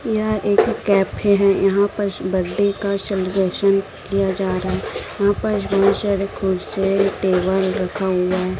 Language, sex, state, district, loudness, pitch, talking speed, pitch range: Hindi, female, Chhattisgarh, Raipur, -19 LUFS, 195 Hz, 155 wpm, 190-200 Hz